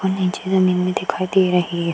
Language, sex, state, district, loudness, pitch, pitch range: Hindi, female, Uttar Pradesh, Hamirpur, -19 LUFS, 185 Hz, 180-190 Hz